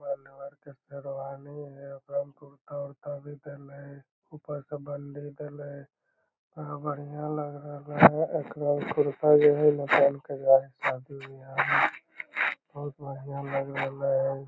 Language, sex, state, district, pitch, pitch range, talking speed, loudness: Magahi, male, Bihar, Lakhisarai, 145 Hz, 140-145 Hz, 130 wpm, -27 LUFS